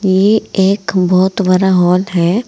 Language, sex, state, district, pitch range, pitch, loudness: Hindi, female, Uttar Pradesh, Saharanpur, 180-195 Hz, 190 Hz, -12 LUFS